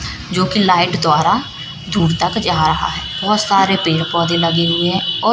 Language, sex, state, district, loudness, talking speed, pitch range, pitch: Hindi, female, Madhya Pradesh, Katni, -15 LUFS, 190 wpm, 165-190 Hz, 175 Hz